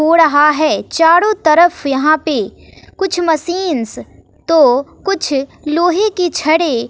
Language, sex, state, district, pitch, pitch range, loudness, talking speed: Hindi, female, Bihar, West Champaran, 320 Hz, 300-350 Hz, -13 LUFS, 120 wpm